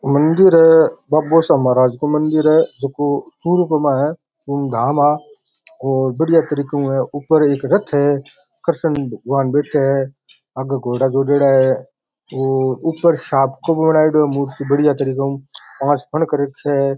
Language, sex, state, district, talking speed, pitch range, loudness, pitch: Rajasthani, male, Rajasthan, Churu, 140 wpm, 135-155 Hz, -16 LUFS, 145 Hz